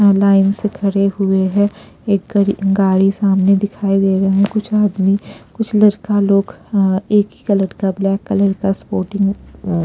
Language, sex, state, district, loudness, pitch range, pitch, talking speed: Hindi, female, Punjab, Pathankot, -15 LUFS, 195-205 Hz, 200 Hz, 175 wpm